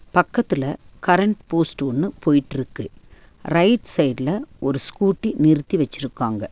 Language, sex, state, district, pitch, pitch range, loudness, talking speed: Tamil, female, Tamil Nadu, Nilgiris, 155 Hz, 135-190 Hz, -21 LUFS, 110 wpm